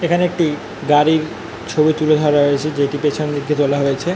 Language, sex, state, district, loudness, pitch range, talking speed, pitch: Bengali, male, West Bengal, North 24 Parganas, -17 LUFS, 140-155 Hz, 200 wpm, 150 Hz